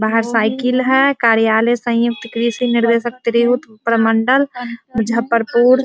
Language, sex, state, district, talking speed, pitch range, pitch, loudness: Hindi, female, Bihar, Muzaffarpur, 100 wpm, 230-245 Hz, 235 Hz, -15 LUFS